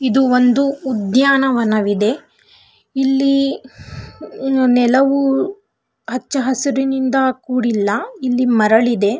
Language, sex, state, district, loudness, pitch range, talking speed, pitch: Kannada, female, Karnataka, Belgaum, -16 LUFS, 240-270 Hz, 70 wpm, 260 Hz